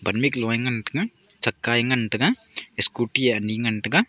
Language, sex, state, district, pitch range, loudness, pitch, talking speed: Wancho, male, Arunachal Pradesh, Longding, 115-155 Hz, -22 LUFS, 120 Hz, 205 wpm